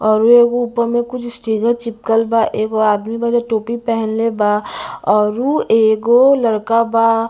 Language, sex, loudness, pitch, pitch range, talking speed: Bhojpuri, female, -15 LUFS, 230 Hz, 220-235 Hz, 140 wpm